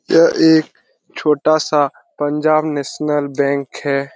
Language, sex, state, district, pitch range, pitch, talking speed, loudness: Hindi, male, Bihar, Lakhisarai, 140-155 Hz, 150 Hz, 115 wpm, -16 LUFS